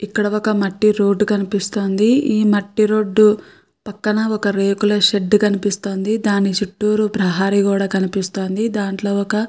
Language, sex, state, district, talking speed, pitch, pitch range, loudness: Telugu, female, Andhra Pradesh, Guntur, 120 wpm, 205 Hz, 200-215 Hz, -17 LUFS